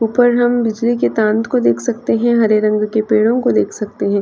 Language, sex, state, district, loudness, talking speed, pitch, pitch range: Hindi, female, Chhattisgarh, Raigarh, -15 LUFS, 240 wpm, 225 Hz, 215-240 Hz